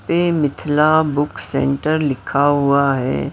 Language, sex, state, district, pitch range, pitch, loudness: Hindi, female, Maharashtra, Mumbai Suburban, 140-155 Hz, 145 Hz, -17 LUFS